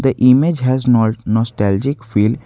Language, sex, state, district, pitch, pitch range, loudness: English, male, Jharkhand, Garhwa, 120 Hz, 110-130 Hz, -15 LUFS